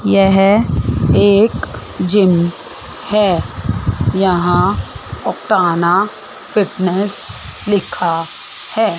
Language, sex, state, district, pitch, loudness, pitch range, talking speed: Hindi, female, Chandigarh, Chandigarh, 185 Hz, -15 LUFS, 170-205 Hz, 55 wpm